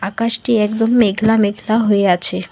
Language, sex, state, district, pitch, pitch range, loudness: Bengali, female, West Bengal, Alipurduar, 220 Hz, 195-225 Hz, -15 LUFS